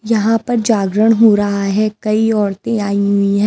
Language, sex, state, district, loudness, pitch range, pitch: Hindi, female, Himachal Pradesh, Shimla, -14 LUFS, 200-225 Hz, 215 Hz